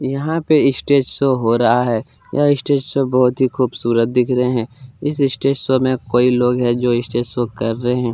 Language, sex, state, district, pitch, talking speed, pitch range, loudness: Hindi, male, Chhattisgarh, Kabirdham, 125 Hz, 215 wpm, 120-135 Hz, -17 LUFS